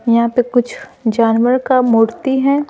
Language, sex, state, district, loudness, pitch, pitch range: Hindi, female, Bihar, Patna, -14 LUFS, 245 Hz, 230-260 Hz